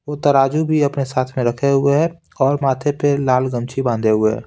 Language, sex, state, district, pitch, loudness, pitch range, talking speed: Hindi, male, Bihar, Patna, 135 Hz, -17 LUFS, 125-145 Hz, 230 wpm